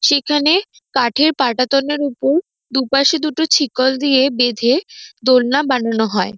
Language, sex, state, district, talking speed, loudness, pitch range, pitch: Bengali, female, West Bengal, North 24 Parganas, 120 wpm, -16 LUFS, 255-300 Hz, 275 Hz